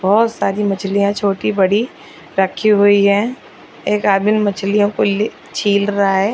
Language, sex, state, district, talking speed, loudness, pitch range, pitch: Hindi, female, Chhattisgarh, Raigarh, 160 wpm, -16 LUFS, 200-210 Hz, 205 Hz